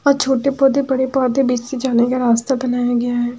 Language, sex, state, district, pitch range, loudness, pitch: Hindi, female, Haryana, Jhajjar, 245-270 Hz, -17 LUFS, 255 Hz